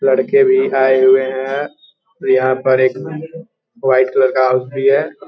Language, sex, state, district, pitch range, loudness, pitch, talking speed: Hindi, male, Bihar, Gopalganj, 130-150 Hz, -14 LUFS, 135 Hz, 170 wpm